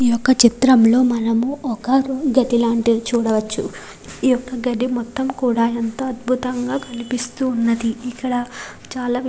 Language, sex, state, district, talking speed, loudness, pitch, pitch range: Telugu, female, Andhra Pradesh, Srikakulam, 125 wpm, -19 LUFS, 245 Hz, 235-255 Hz